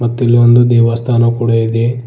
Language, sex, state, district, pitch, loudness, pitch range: Kannada, male, Karnataka, Bidar, 120 Hz, -11 LUFS, 115-120 Hz